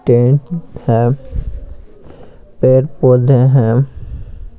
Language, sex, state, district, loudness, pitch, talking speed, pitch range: Hindi, male, Bihar, Patna, -13 LUFS, 125 Hz, 65 wpm, 120-135 Hz